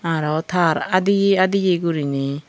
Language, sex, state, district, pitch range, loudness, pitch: Chakma, female, Tripura, Unakoti, 155-185 Hz, -19 LUFS, 170 Hz